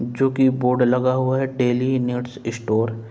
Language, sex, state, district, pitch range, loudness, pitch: Hindi, male, Uttar Pradesh, Jalaun, 120-130 Hz, -20 LUFS, 125 Hz